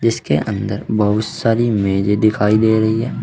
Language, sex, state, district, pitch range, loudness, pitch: Hindi, male, Uttar Pradesh, Saharanpur, 105-115 Hz, -16 LUFS, 110 Hz